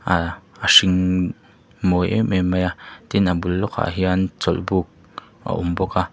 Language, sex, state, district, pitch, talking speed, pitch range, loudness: Mizo, male, Mizoram, Aizawl, 90 Hz, 175 wpm, 90-95 Hz, -20 LUFS